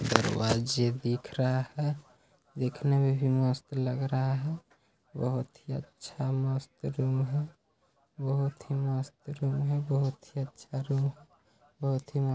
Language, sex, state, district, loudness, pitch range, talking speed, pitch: Hindi, male, Chhattisgarh, Balrampur, -31 LUFS, 130-145 Hz, 150 wpm, 135 Hz